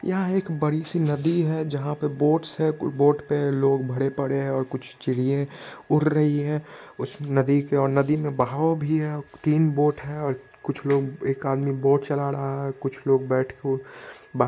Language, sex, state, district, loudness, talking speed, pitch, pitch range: Hindi, male, Bihar, Madhepura, -24 LUFS, 205 wpm, 145 Hz, 135-150 Hz